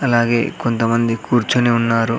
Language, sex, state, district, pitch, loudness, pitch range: Telugu, male, Andhra Pradesh, Sri Satya Sai, 115 Hz, -17 LUFS, 115-120 Hz